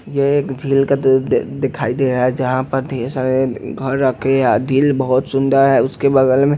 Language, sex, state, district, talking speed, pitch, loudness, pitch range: Hindi, male, Bihar, West Champaran, 200 wpm, 135 Hz, -16 LUFS, 130-135 Hz